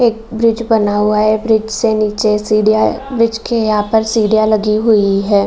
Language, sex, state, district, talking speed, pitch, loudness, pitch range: Hindi, female, Bihar, Saran, 230 wpm, 215 Hz, -13 LUFS, 210-225 Hz